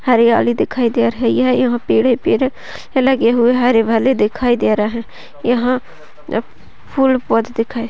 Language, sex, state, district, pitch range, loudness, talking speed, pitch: Hindi, female, Maharashtra, Sindhudurg, 230-255 Hz, -15 LUFS, 150 wpm, 240 Hz